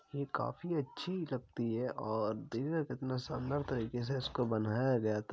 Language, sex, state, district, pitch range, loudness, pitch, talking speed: Hindi, male, Uttar Pradesh, Jalaun, 115-140 Hz, -37 LUFS, 130 Hz, 180 wpm